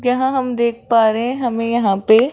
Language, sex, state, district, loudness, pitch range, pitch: Hindi, female, Rajasthan, Jaipur, -17 LUFS, 230-250 Hz, 235 Hz